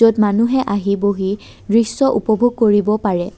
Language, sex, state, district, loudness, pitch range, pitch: Assamese, female, Assam, Kamrup Metropolitan, -16 LUFS, 200-230 Hz, 210 Hz